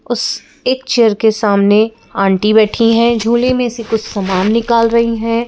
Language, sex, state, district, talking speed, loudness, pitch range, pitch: Hindi, female, Madhya Pradesh, Bhopal, 175 wpm, -13 LUFS, 215-235 Hz, 230 Hz